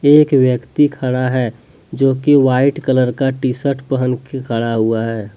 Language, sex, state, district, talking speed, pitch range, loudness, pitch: Hindi, male, Jharkhand, Deoghar, 180 wpm, 125-140 Hz, -15 LUFS, 130 Hz